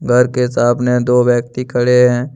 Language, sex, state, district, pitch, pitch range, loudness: Hindi, male, Jharkhand, Deoghar, 125 Hz, 120-125 Hz, -14 LUFS